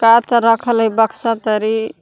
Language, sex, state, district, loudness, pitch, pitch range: Magahi, female, Jharkhand, Palamu, -15 LUFS, 225 Hz, 220-230 Hz